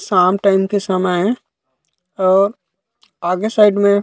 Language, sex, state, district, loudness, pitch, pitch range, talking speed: Chhattisgarhi, male, Chhattisgarh, Raigarh, -16 LUFS, 190 Hz, 180-205 Hz, 135 wpm